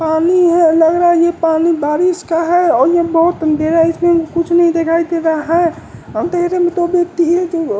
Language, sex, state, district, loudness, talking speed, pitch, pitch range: Hindi, male, Bihar, West Champaran, -13 LUFS, 230 wpm, 335 Hz, 325-345 Hz